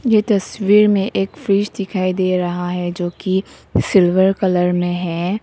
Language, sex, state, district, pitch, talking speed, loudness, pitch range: Hindi, female, Nagaland, Kohima, 190 Hz, 165 wpm, -17 LUFS, 180-200 Hz